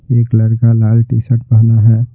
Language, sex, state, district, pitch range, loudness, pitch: Hindi, male, Bihar, Patna, 115-120 Hz, -11 LUFS, 115 Hz